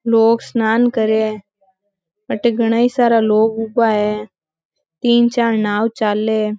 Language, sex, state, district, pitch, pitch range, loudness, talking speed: Marwari, female, Rajasthan, Nagaur, 220 Hz, 210-230 Hz, -16 LUFS, 125 wpm